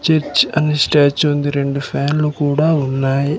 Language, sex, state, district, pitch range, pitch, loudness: Telugu, male, Andhra Pradesh, Manyam, 140-150 Hz, 145 Hz, -16 LUFS